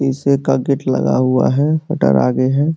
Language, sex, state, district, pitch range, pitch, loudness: Hindi, male, Uttar Pradesh, Gorakhpur, 130-145 Hz, 135 Hz, -15 LUFS